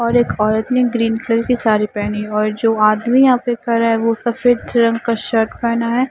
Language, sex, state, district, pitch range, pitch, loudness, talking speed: Hindi, female, Punjab, Fazilka, 220-240 Hz, 230 Hz, -16 LUFS, 225 wpm